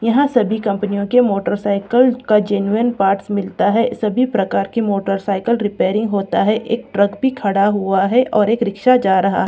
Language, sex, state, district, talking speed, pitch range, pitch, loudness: Hindi, female, Bihar, Katihar, 175 wpm, 200-235 Hz, 210 Hz, -16 LUFS